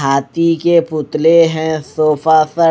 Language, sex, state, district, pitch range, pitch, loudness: Hindi, male, Odisha, Malkangiri, 155-165 Hz, 160 Hz, -13 LUFS